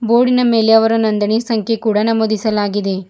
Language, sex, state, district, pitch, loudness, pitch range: Kannada, male, Karnataka, Bidar, 220 Hz, -15 LUFS, 210-225 Hz